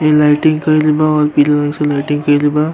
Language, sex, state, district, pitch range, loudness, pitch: Bhojpuri, male, Uttar Pradesh, Ghazipur, 145-155 Hz, -13 LUFS, 150 Hz